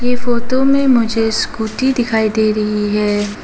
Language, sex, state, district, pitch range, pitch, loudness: Hindi, female, Arunachal Pradesh, Lower Dibang Valley, 215-245 Hz, 225 Hz, -15 LUFS